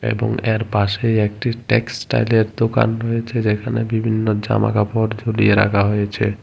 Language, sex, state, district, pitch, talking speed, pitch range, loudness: Bengali, male, Tripura, West Tripura, 110 Hz, 130 wpm, 105-115 Hz, -18 LUFS